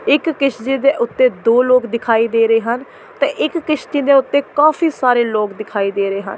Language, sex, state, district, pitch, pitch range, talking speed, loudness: Punjabi, female, Delhi, New Delhi, 250 Hz, 225-280 Hz, 215 wpm, -15 LUFS